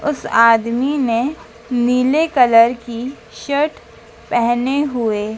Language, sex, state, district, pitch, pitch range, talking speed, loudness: Hindi, female, Madhya Pradesh, Dhar, 240 Hz, 230-275 Hz, 100 wpm, -16 LUFS